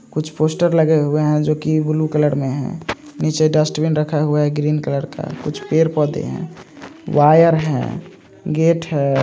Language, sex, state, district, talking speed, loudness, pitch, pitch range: Hindi, male, Andhra Pradesh, Krishna, 175 wpm, -17 LUFS, 155 Hz, 150-160 Hz